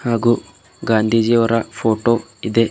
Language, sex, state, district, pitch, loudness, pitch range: Kannada, male, Karnataka, Bidar, 115 Hz, -17 LUFS, 110-115 Hz